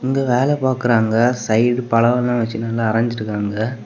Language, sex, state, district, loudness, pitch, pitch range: Tamil, male, Tamil Nadu, Kanyakumari, -18 LUFS, 120 Hz, 110-125 Hz